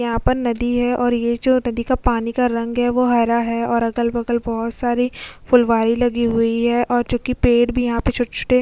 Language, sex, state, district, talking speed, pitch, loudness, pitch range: Hindi, female, Chhattisgarh, Sukma, 215 wpm, 240 Hz, -18 LUFS, 235-245 Hz